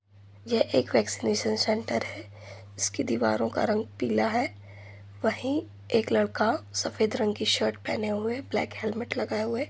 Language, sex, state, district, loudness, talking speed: Hindi, female, Uttar Pradesh, Budaun, -28 LUFS, 155 wpm